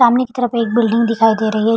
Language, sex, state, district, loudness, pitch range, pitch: Hindi, female, Uttar Pradesh, Jalaun, -15 LUFS, 225-240 Hz, 230 Hz